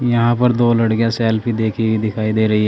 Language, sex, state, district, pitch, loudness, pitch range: Hindi, male, Uttar Pradesh, Saharanpur, 115 Hz, -16 LUFS, 110-120 Hz